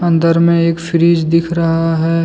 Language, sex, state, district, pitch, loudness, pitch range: Hindi, male, Jharkhand, Deoghar, 165 Hz, -13 LUFS, 165-170 Hz